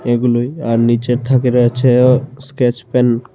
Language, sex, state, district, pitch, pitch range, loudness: Bengali, male, Tripura, Unakoti, 125 Hz, 120-125 Hz, -14 LUFS